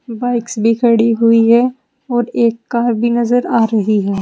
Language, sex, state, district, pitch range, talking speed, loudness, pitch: Hindi, female, Uttar Pradesh, Saharanpur, 230-240 Hz, 185 wpm, -14 LUFS, 235 Hz